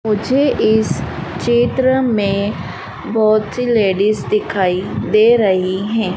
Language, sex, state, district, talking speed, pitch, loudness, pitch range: Hindi, female, Madhya Pradesh, Dhar, 105 wpm, 215 Hz, -16 LUFS, 195-230 Hz